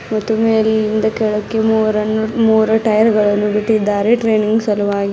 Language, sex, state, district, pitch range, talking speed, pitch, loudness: Kannada, female, Karnataka, Bidar, 210-220 Hz, 115 wpm, 220 Hz, -15 LUFS